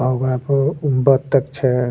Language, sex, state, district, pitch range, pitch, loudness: Bajjika, male, Bihar, Vaishali, 130-140 Hz, 135 Hz, -18 LUFS